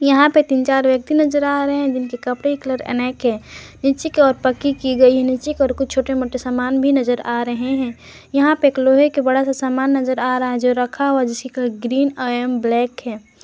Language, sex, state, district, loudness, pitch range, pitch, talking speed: Hindi, male, Jharkhand, Garhwa, -17 LUFS, 250-275 Hz, 260 Hz, 230 wpm